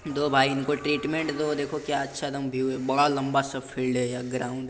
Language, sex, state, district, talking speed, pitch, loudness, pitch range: Hindi, male, Bihar, Jamui, 240 wpm, 140 Hz, -26 LUFS, 130-145 Hz